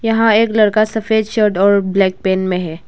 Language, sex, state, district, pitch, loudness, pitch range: Hindi, female, Arunachal Pradesh, Lower Dibang Valley, 210 Hz, -14 LUFS, 190-220 Hz